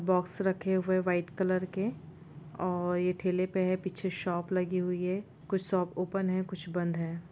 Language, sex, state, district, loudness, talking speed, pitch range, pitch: Hindi, female, Bihar, Gopalganj, -32 LUFS, 195 wpm, 175-185 Hz, 180 Hz